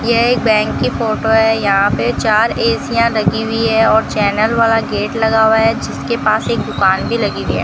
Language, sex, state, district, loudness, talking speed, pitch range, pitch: Hindi, female, Rajasthan, Bikaner, -14 LUFS, 225 wpm, 220-230 Hz, 225 Hz